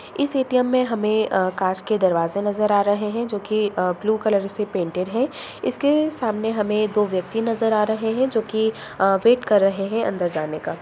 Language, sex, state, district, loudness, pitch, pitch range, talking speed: Hindi, female, Bihar, Jamui, -21 LUFS, 210 Hz, 195-225 Hz, 210 wpm